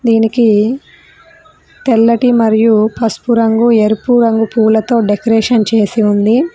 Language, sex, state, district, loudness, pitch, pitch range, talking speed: Telugu, female, Telangana, Mahabubabad, -11 LUFS, 225 Hz, 220-240 Hz, 100 wpm